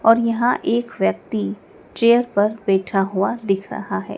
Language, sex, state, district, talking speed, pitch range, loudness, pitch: Hindi, female, Madhya Pradesh, Dhar, 160 wpm, 195-230 Hz, -20 LUFS, 205 Hz